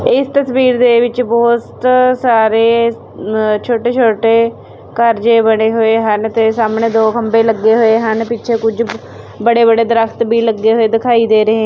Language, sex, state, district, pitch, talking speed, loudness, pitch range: Punjabi, female, Punjab, Kapurthala, 230 Hz, 165 wpm, -12 LUFS, 225-235 Hz